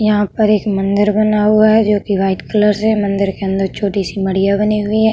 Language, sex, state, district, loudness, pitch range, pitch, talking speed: Hindi, female, Uttar Pradesh, Budaun, -14 LUFS, 195-215 Hz, 205 Hz, 235 wpm